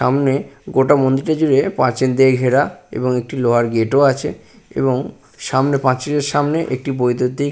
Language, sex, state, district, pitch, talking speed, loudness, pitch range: Bengali, male, West Bengal, Purulia, 135 Hz, 150 wpm, -17 LUFS, 125-145 Hz